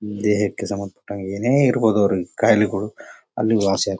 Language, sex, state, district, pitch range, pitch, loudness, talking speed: Kannada, male, Karnataka, Bellary, 100-110 Hz, 100 Hz, -20 LUFS, 135 wpm